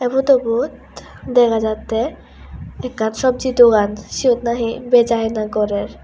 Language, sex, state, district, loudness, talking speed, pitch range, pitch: Chakma, female, Tripura, West Tripura, -17 LUFS, 120 wpm, 220-250 Hz, 235 Hz